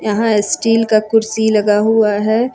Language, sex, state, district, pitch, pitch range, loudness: Hindi, female, Jharkhand, Ranchi, 220 Hz, 210-225 Hz, -14 LUFS